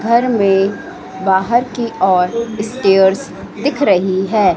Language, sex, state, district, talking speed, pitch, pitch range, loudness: Hindi, female, Madhya Pradesh, Katni, 120 wpm, 210 Hz, 190-235 Hz, -15 LUFS